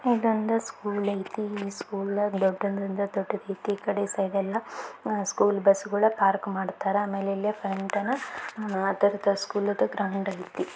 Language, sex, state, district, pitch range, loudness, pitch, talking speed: Kannada, female, Karnataka, Belgaum, 195-210 Hz, -27 LUFS, 200 Hz, 145 wpm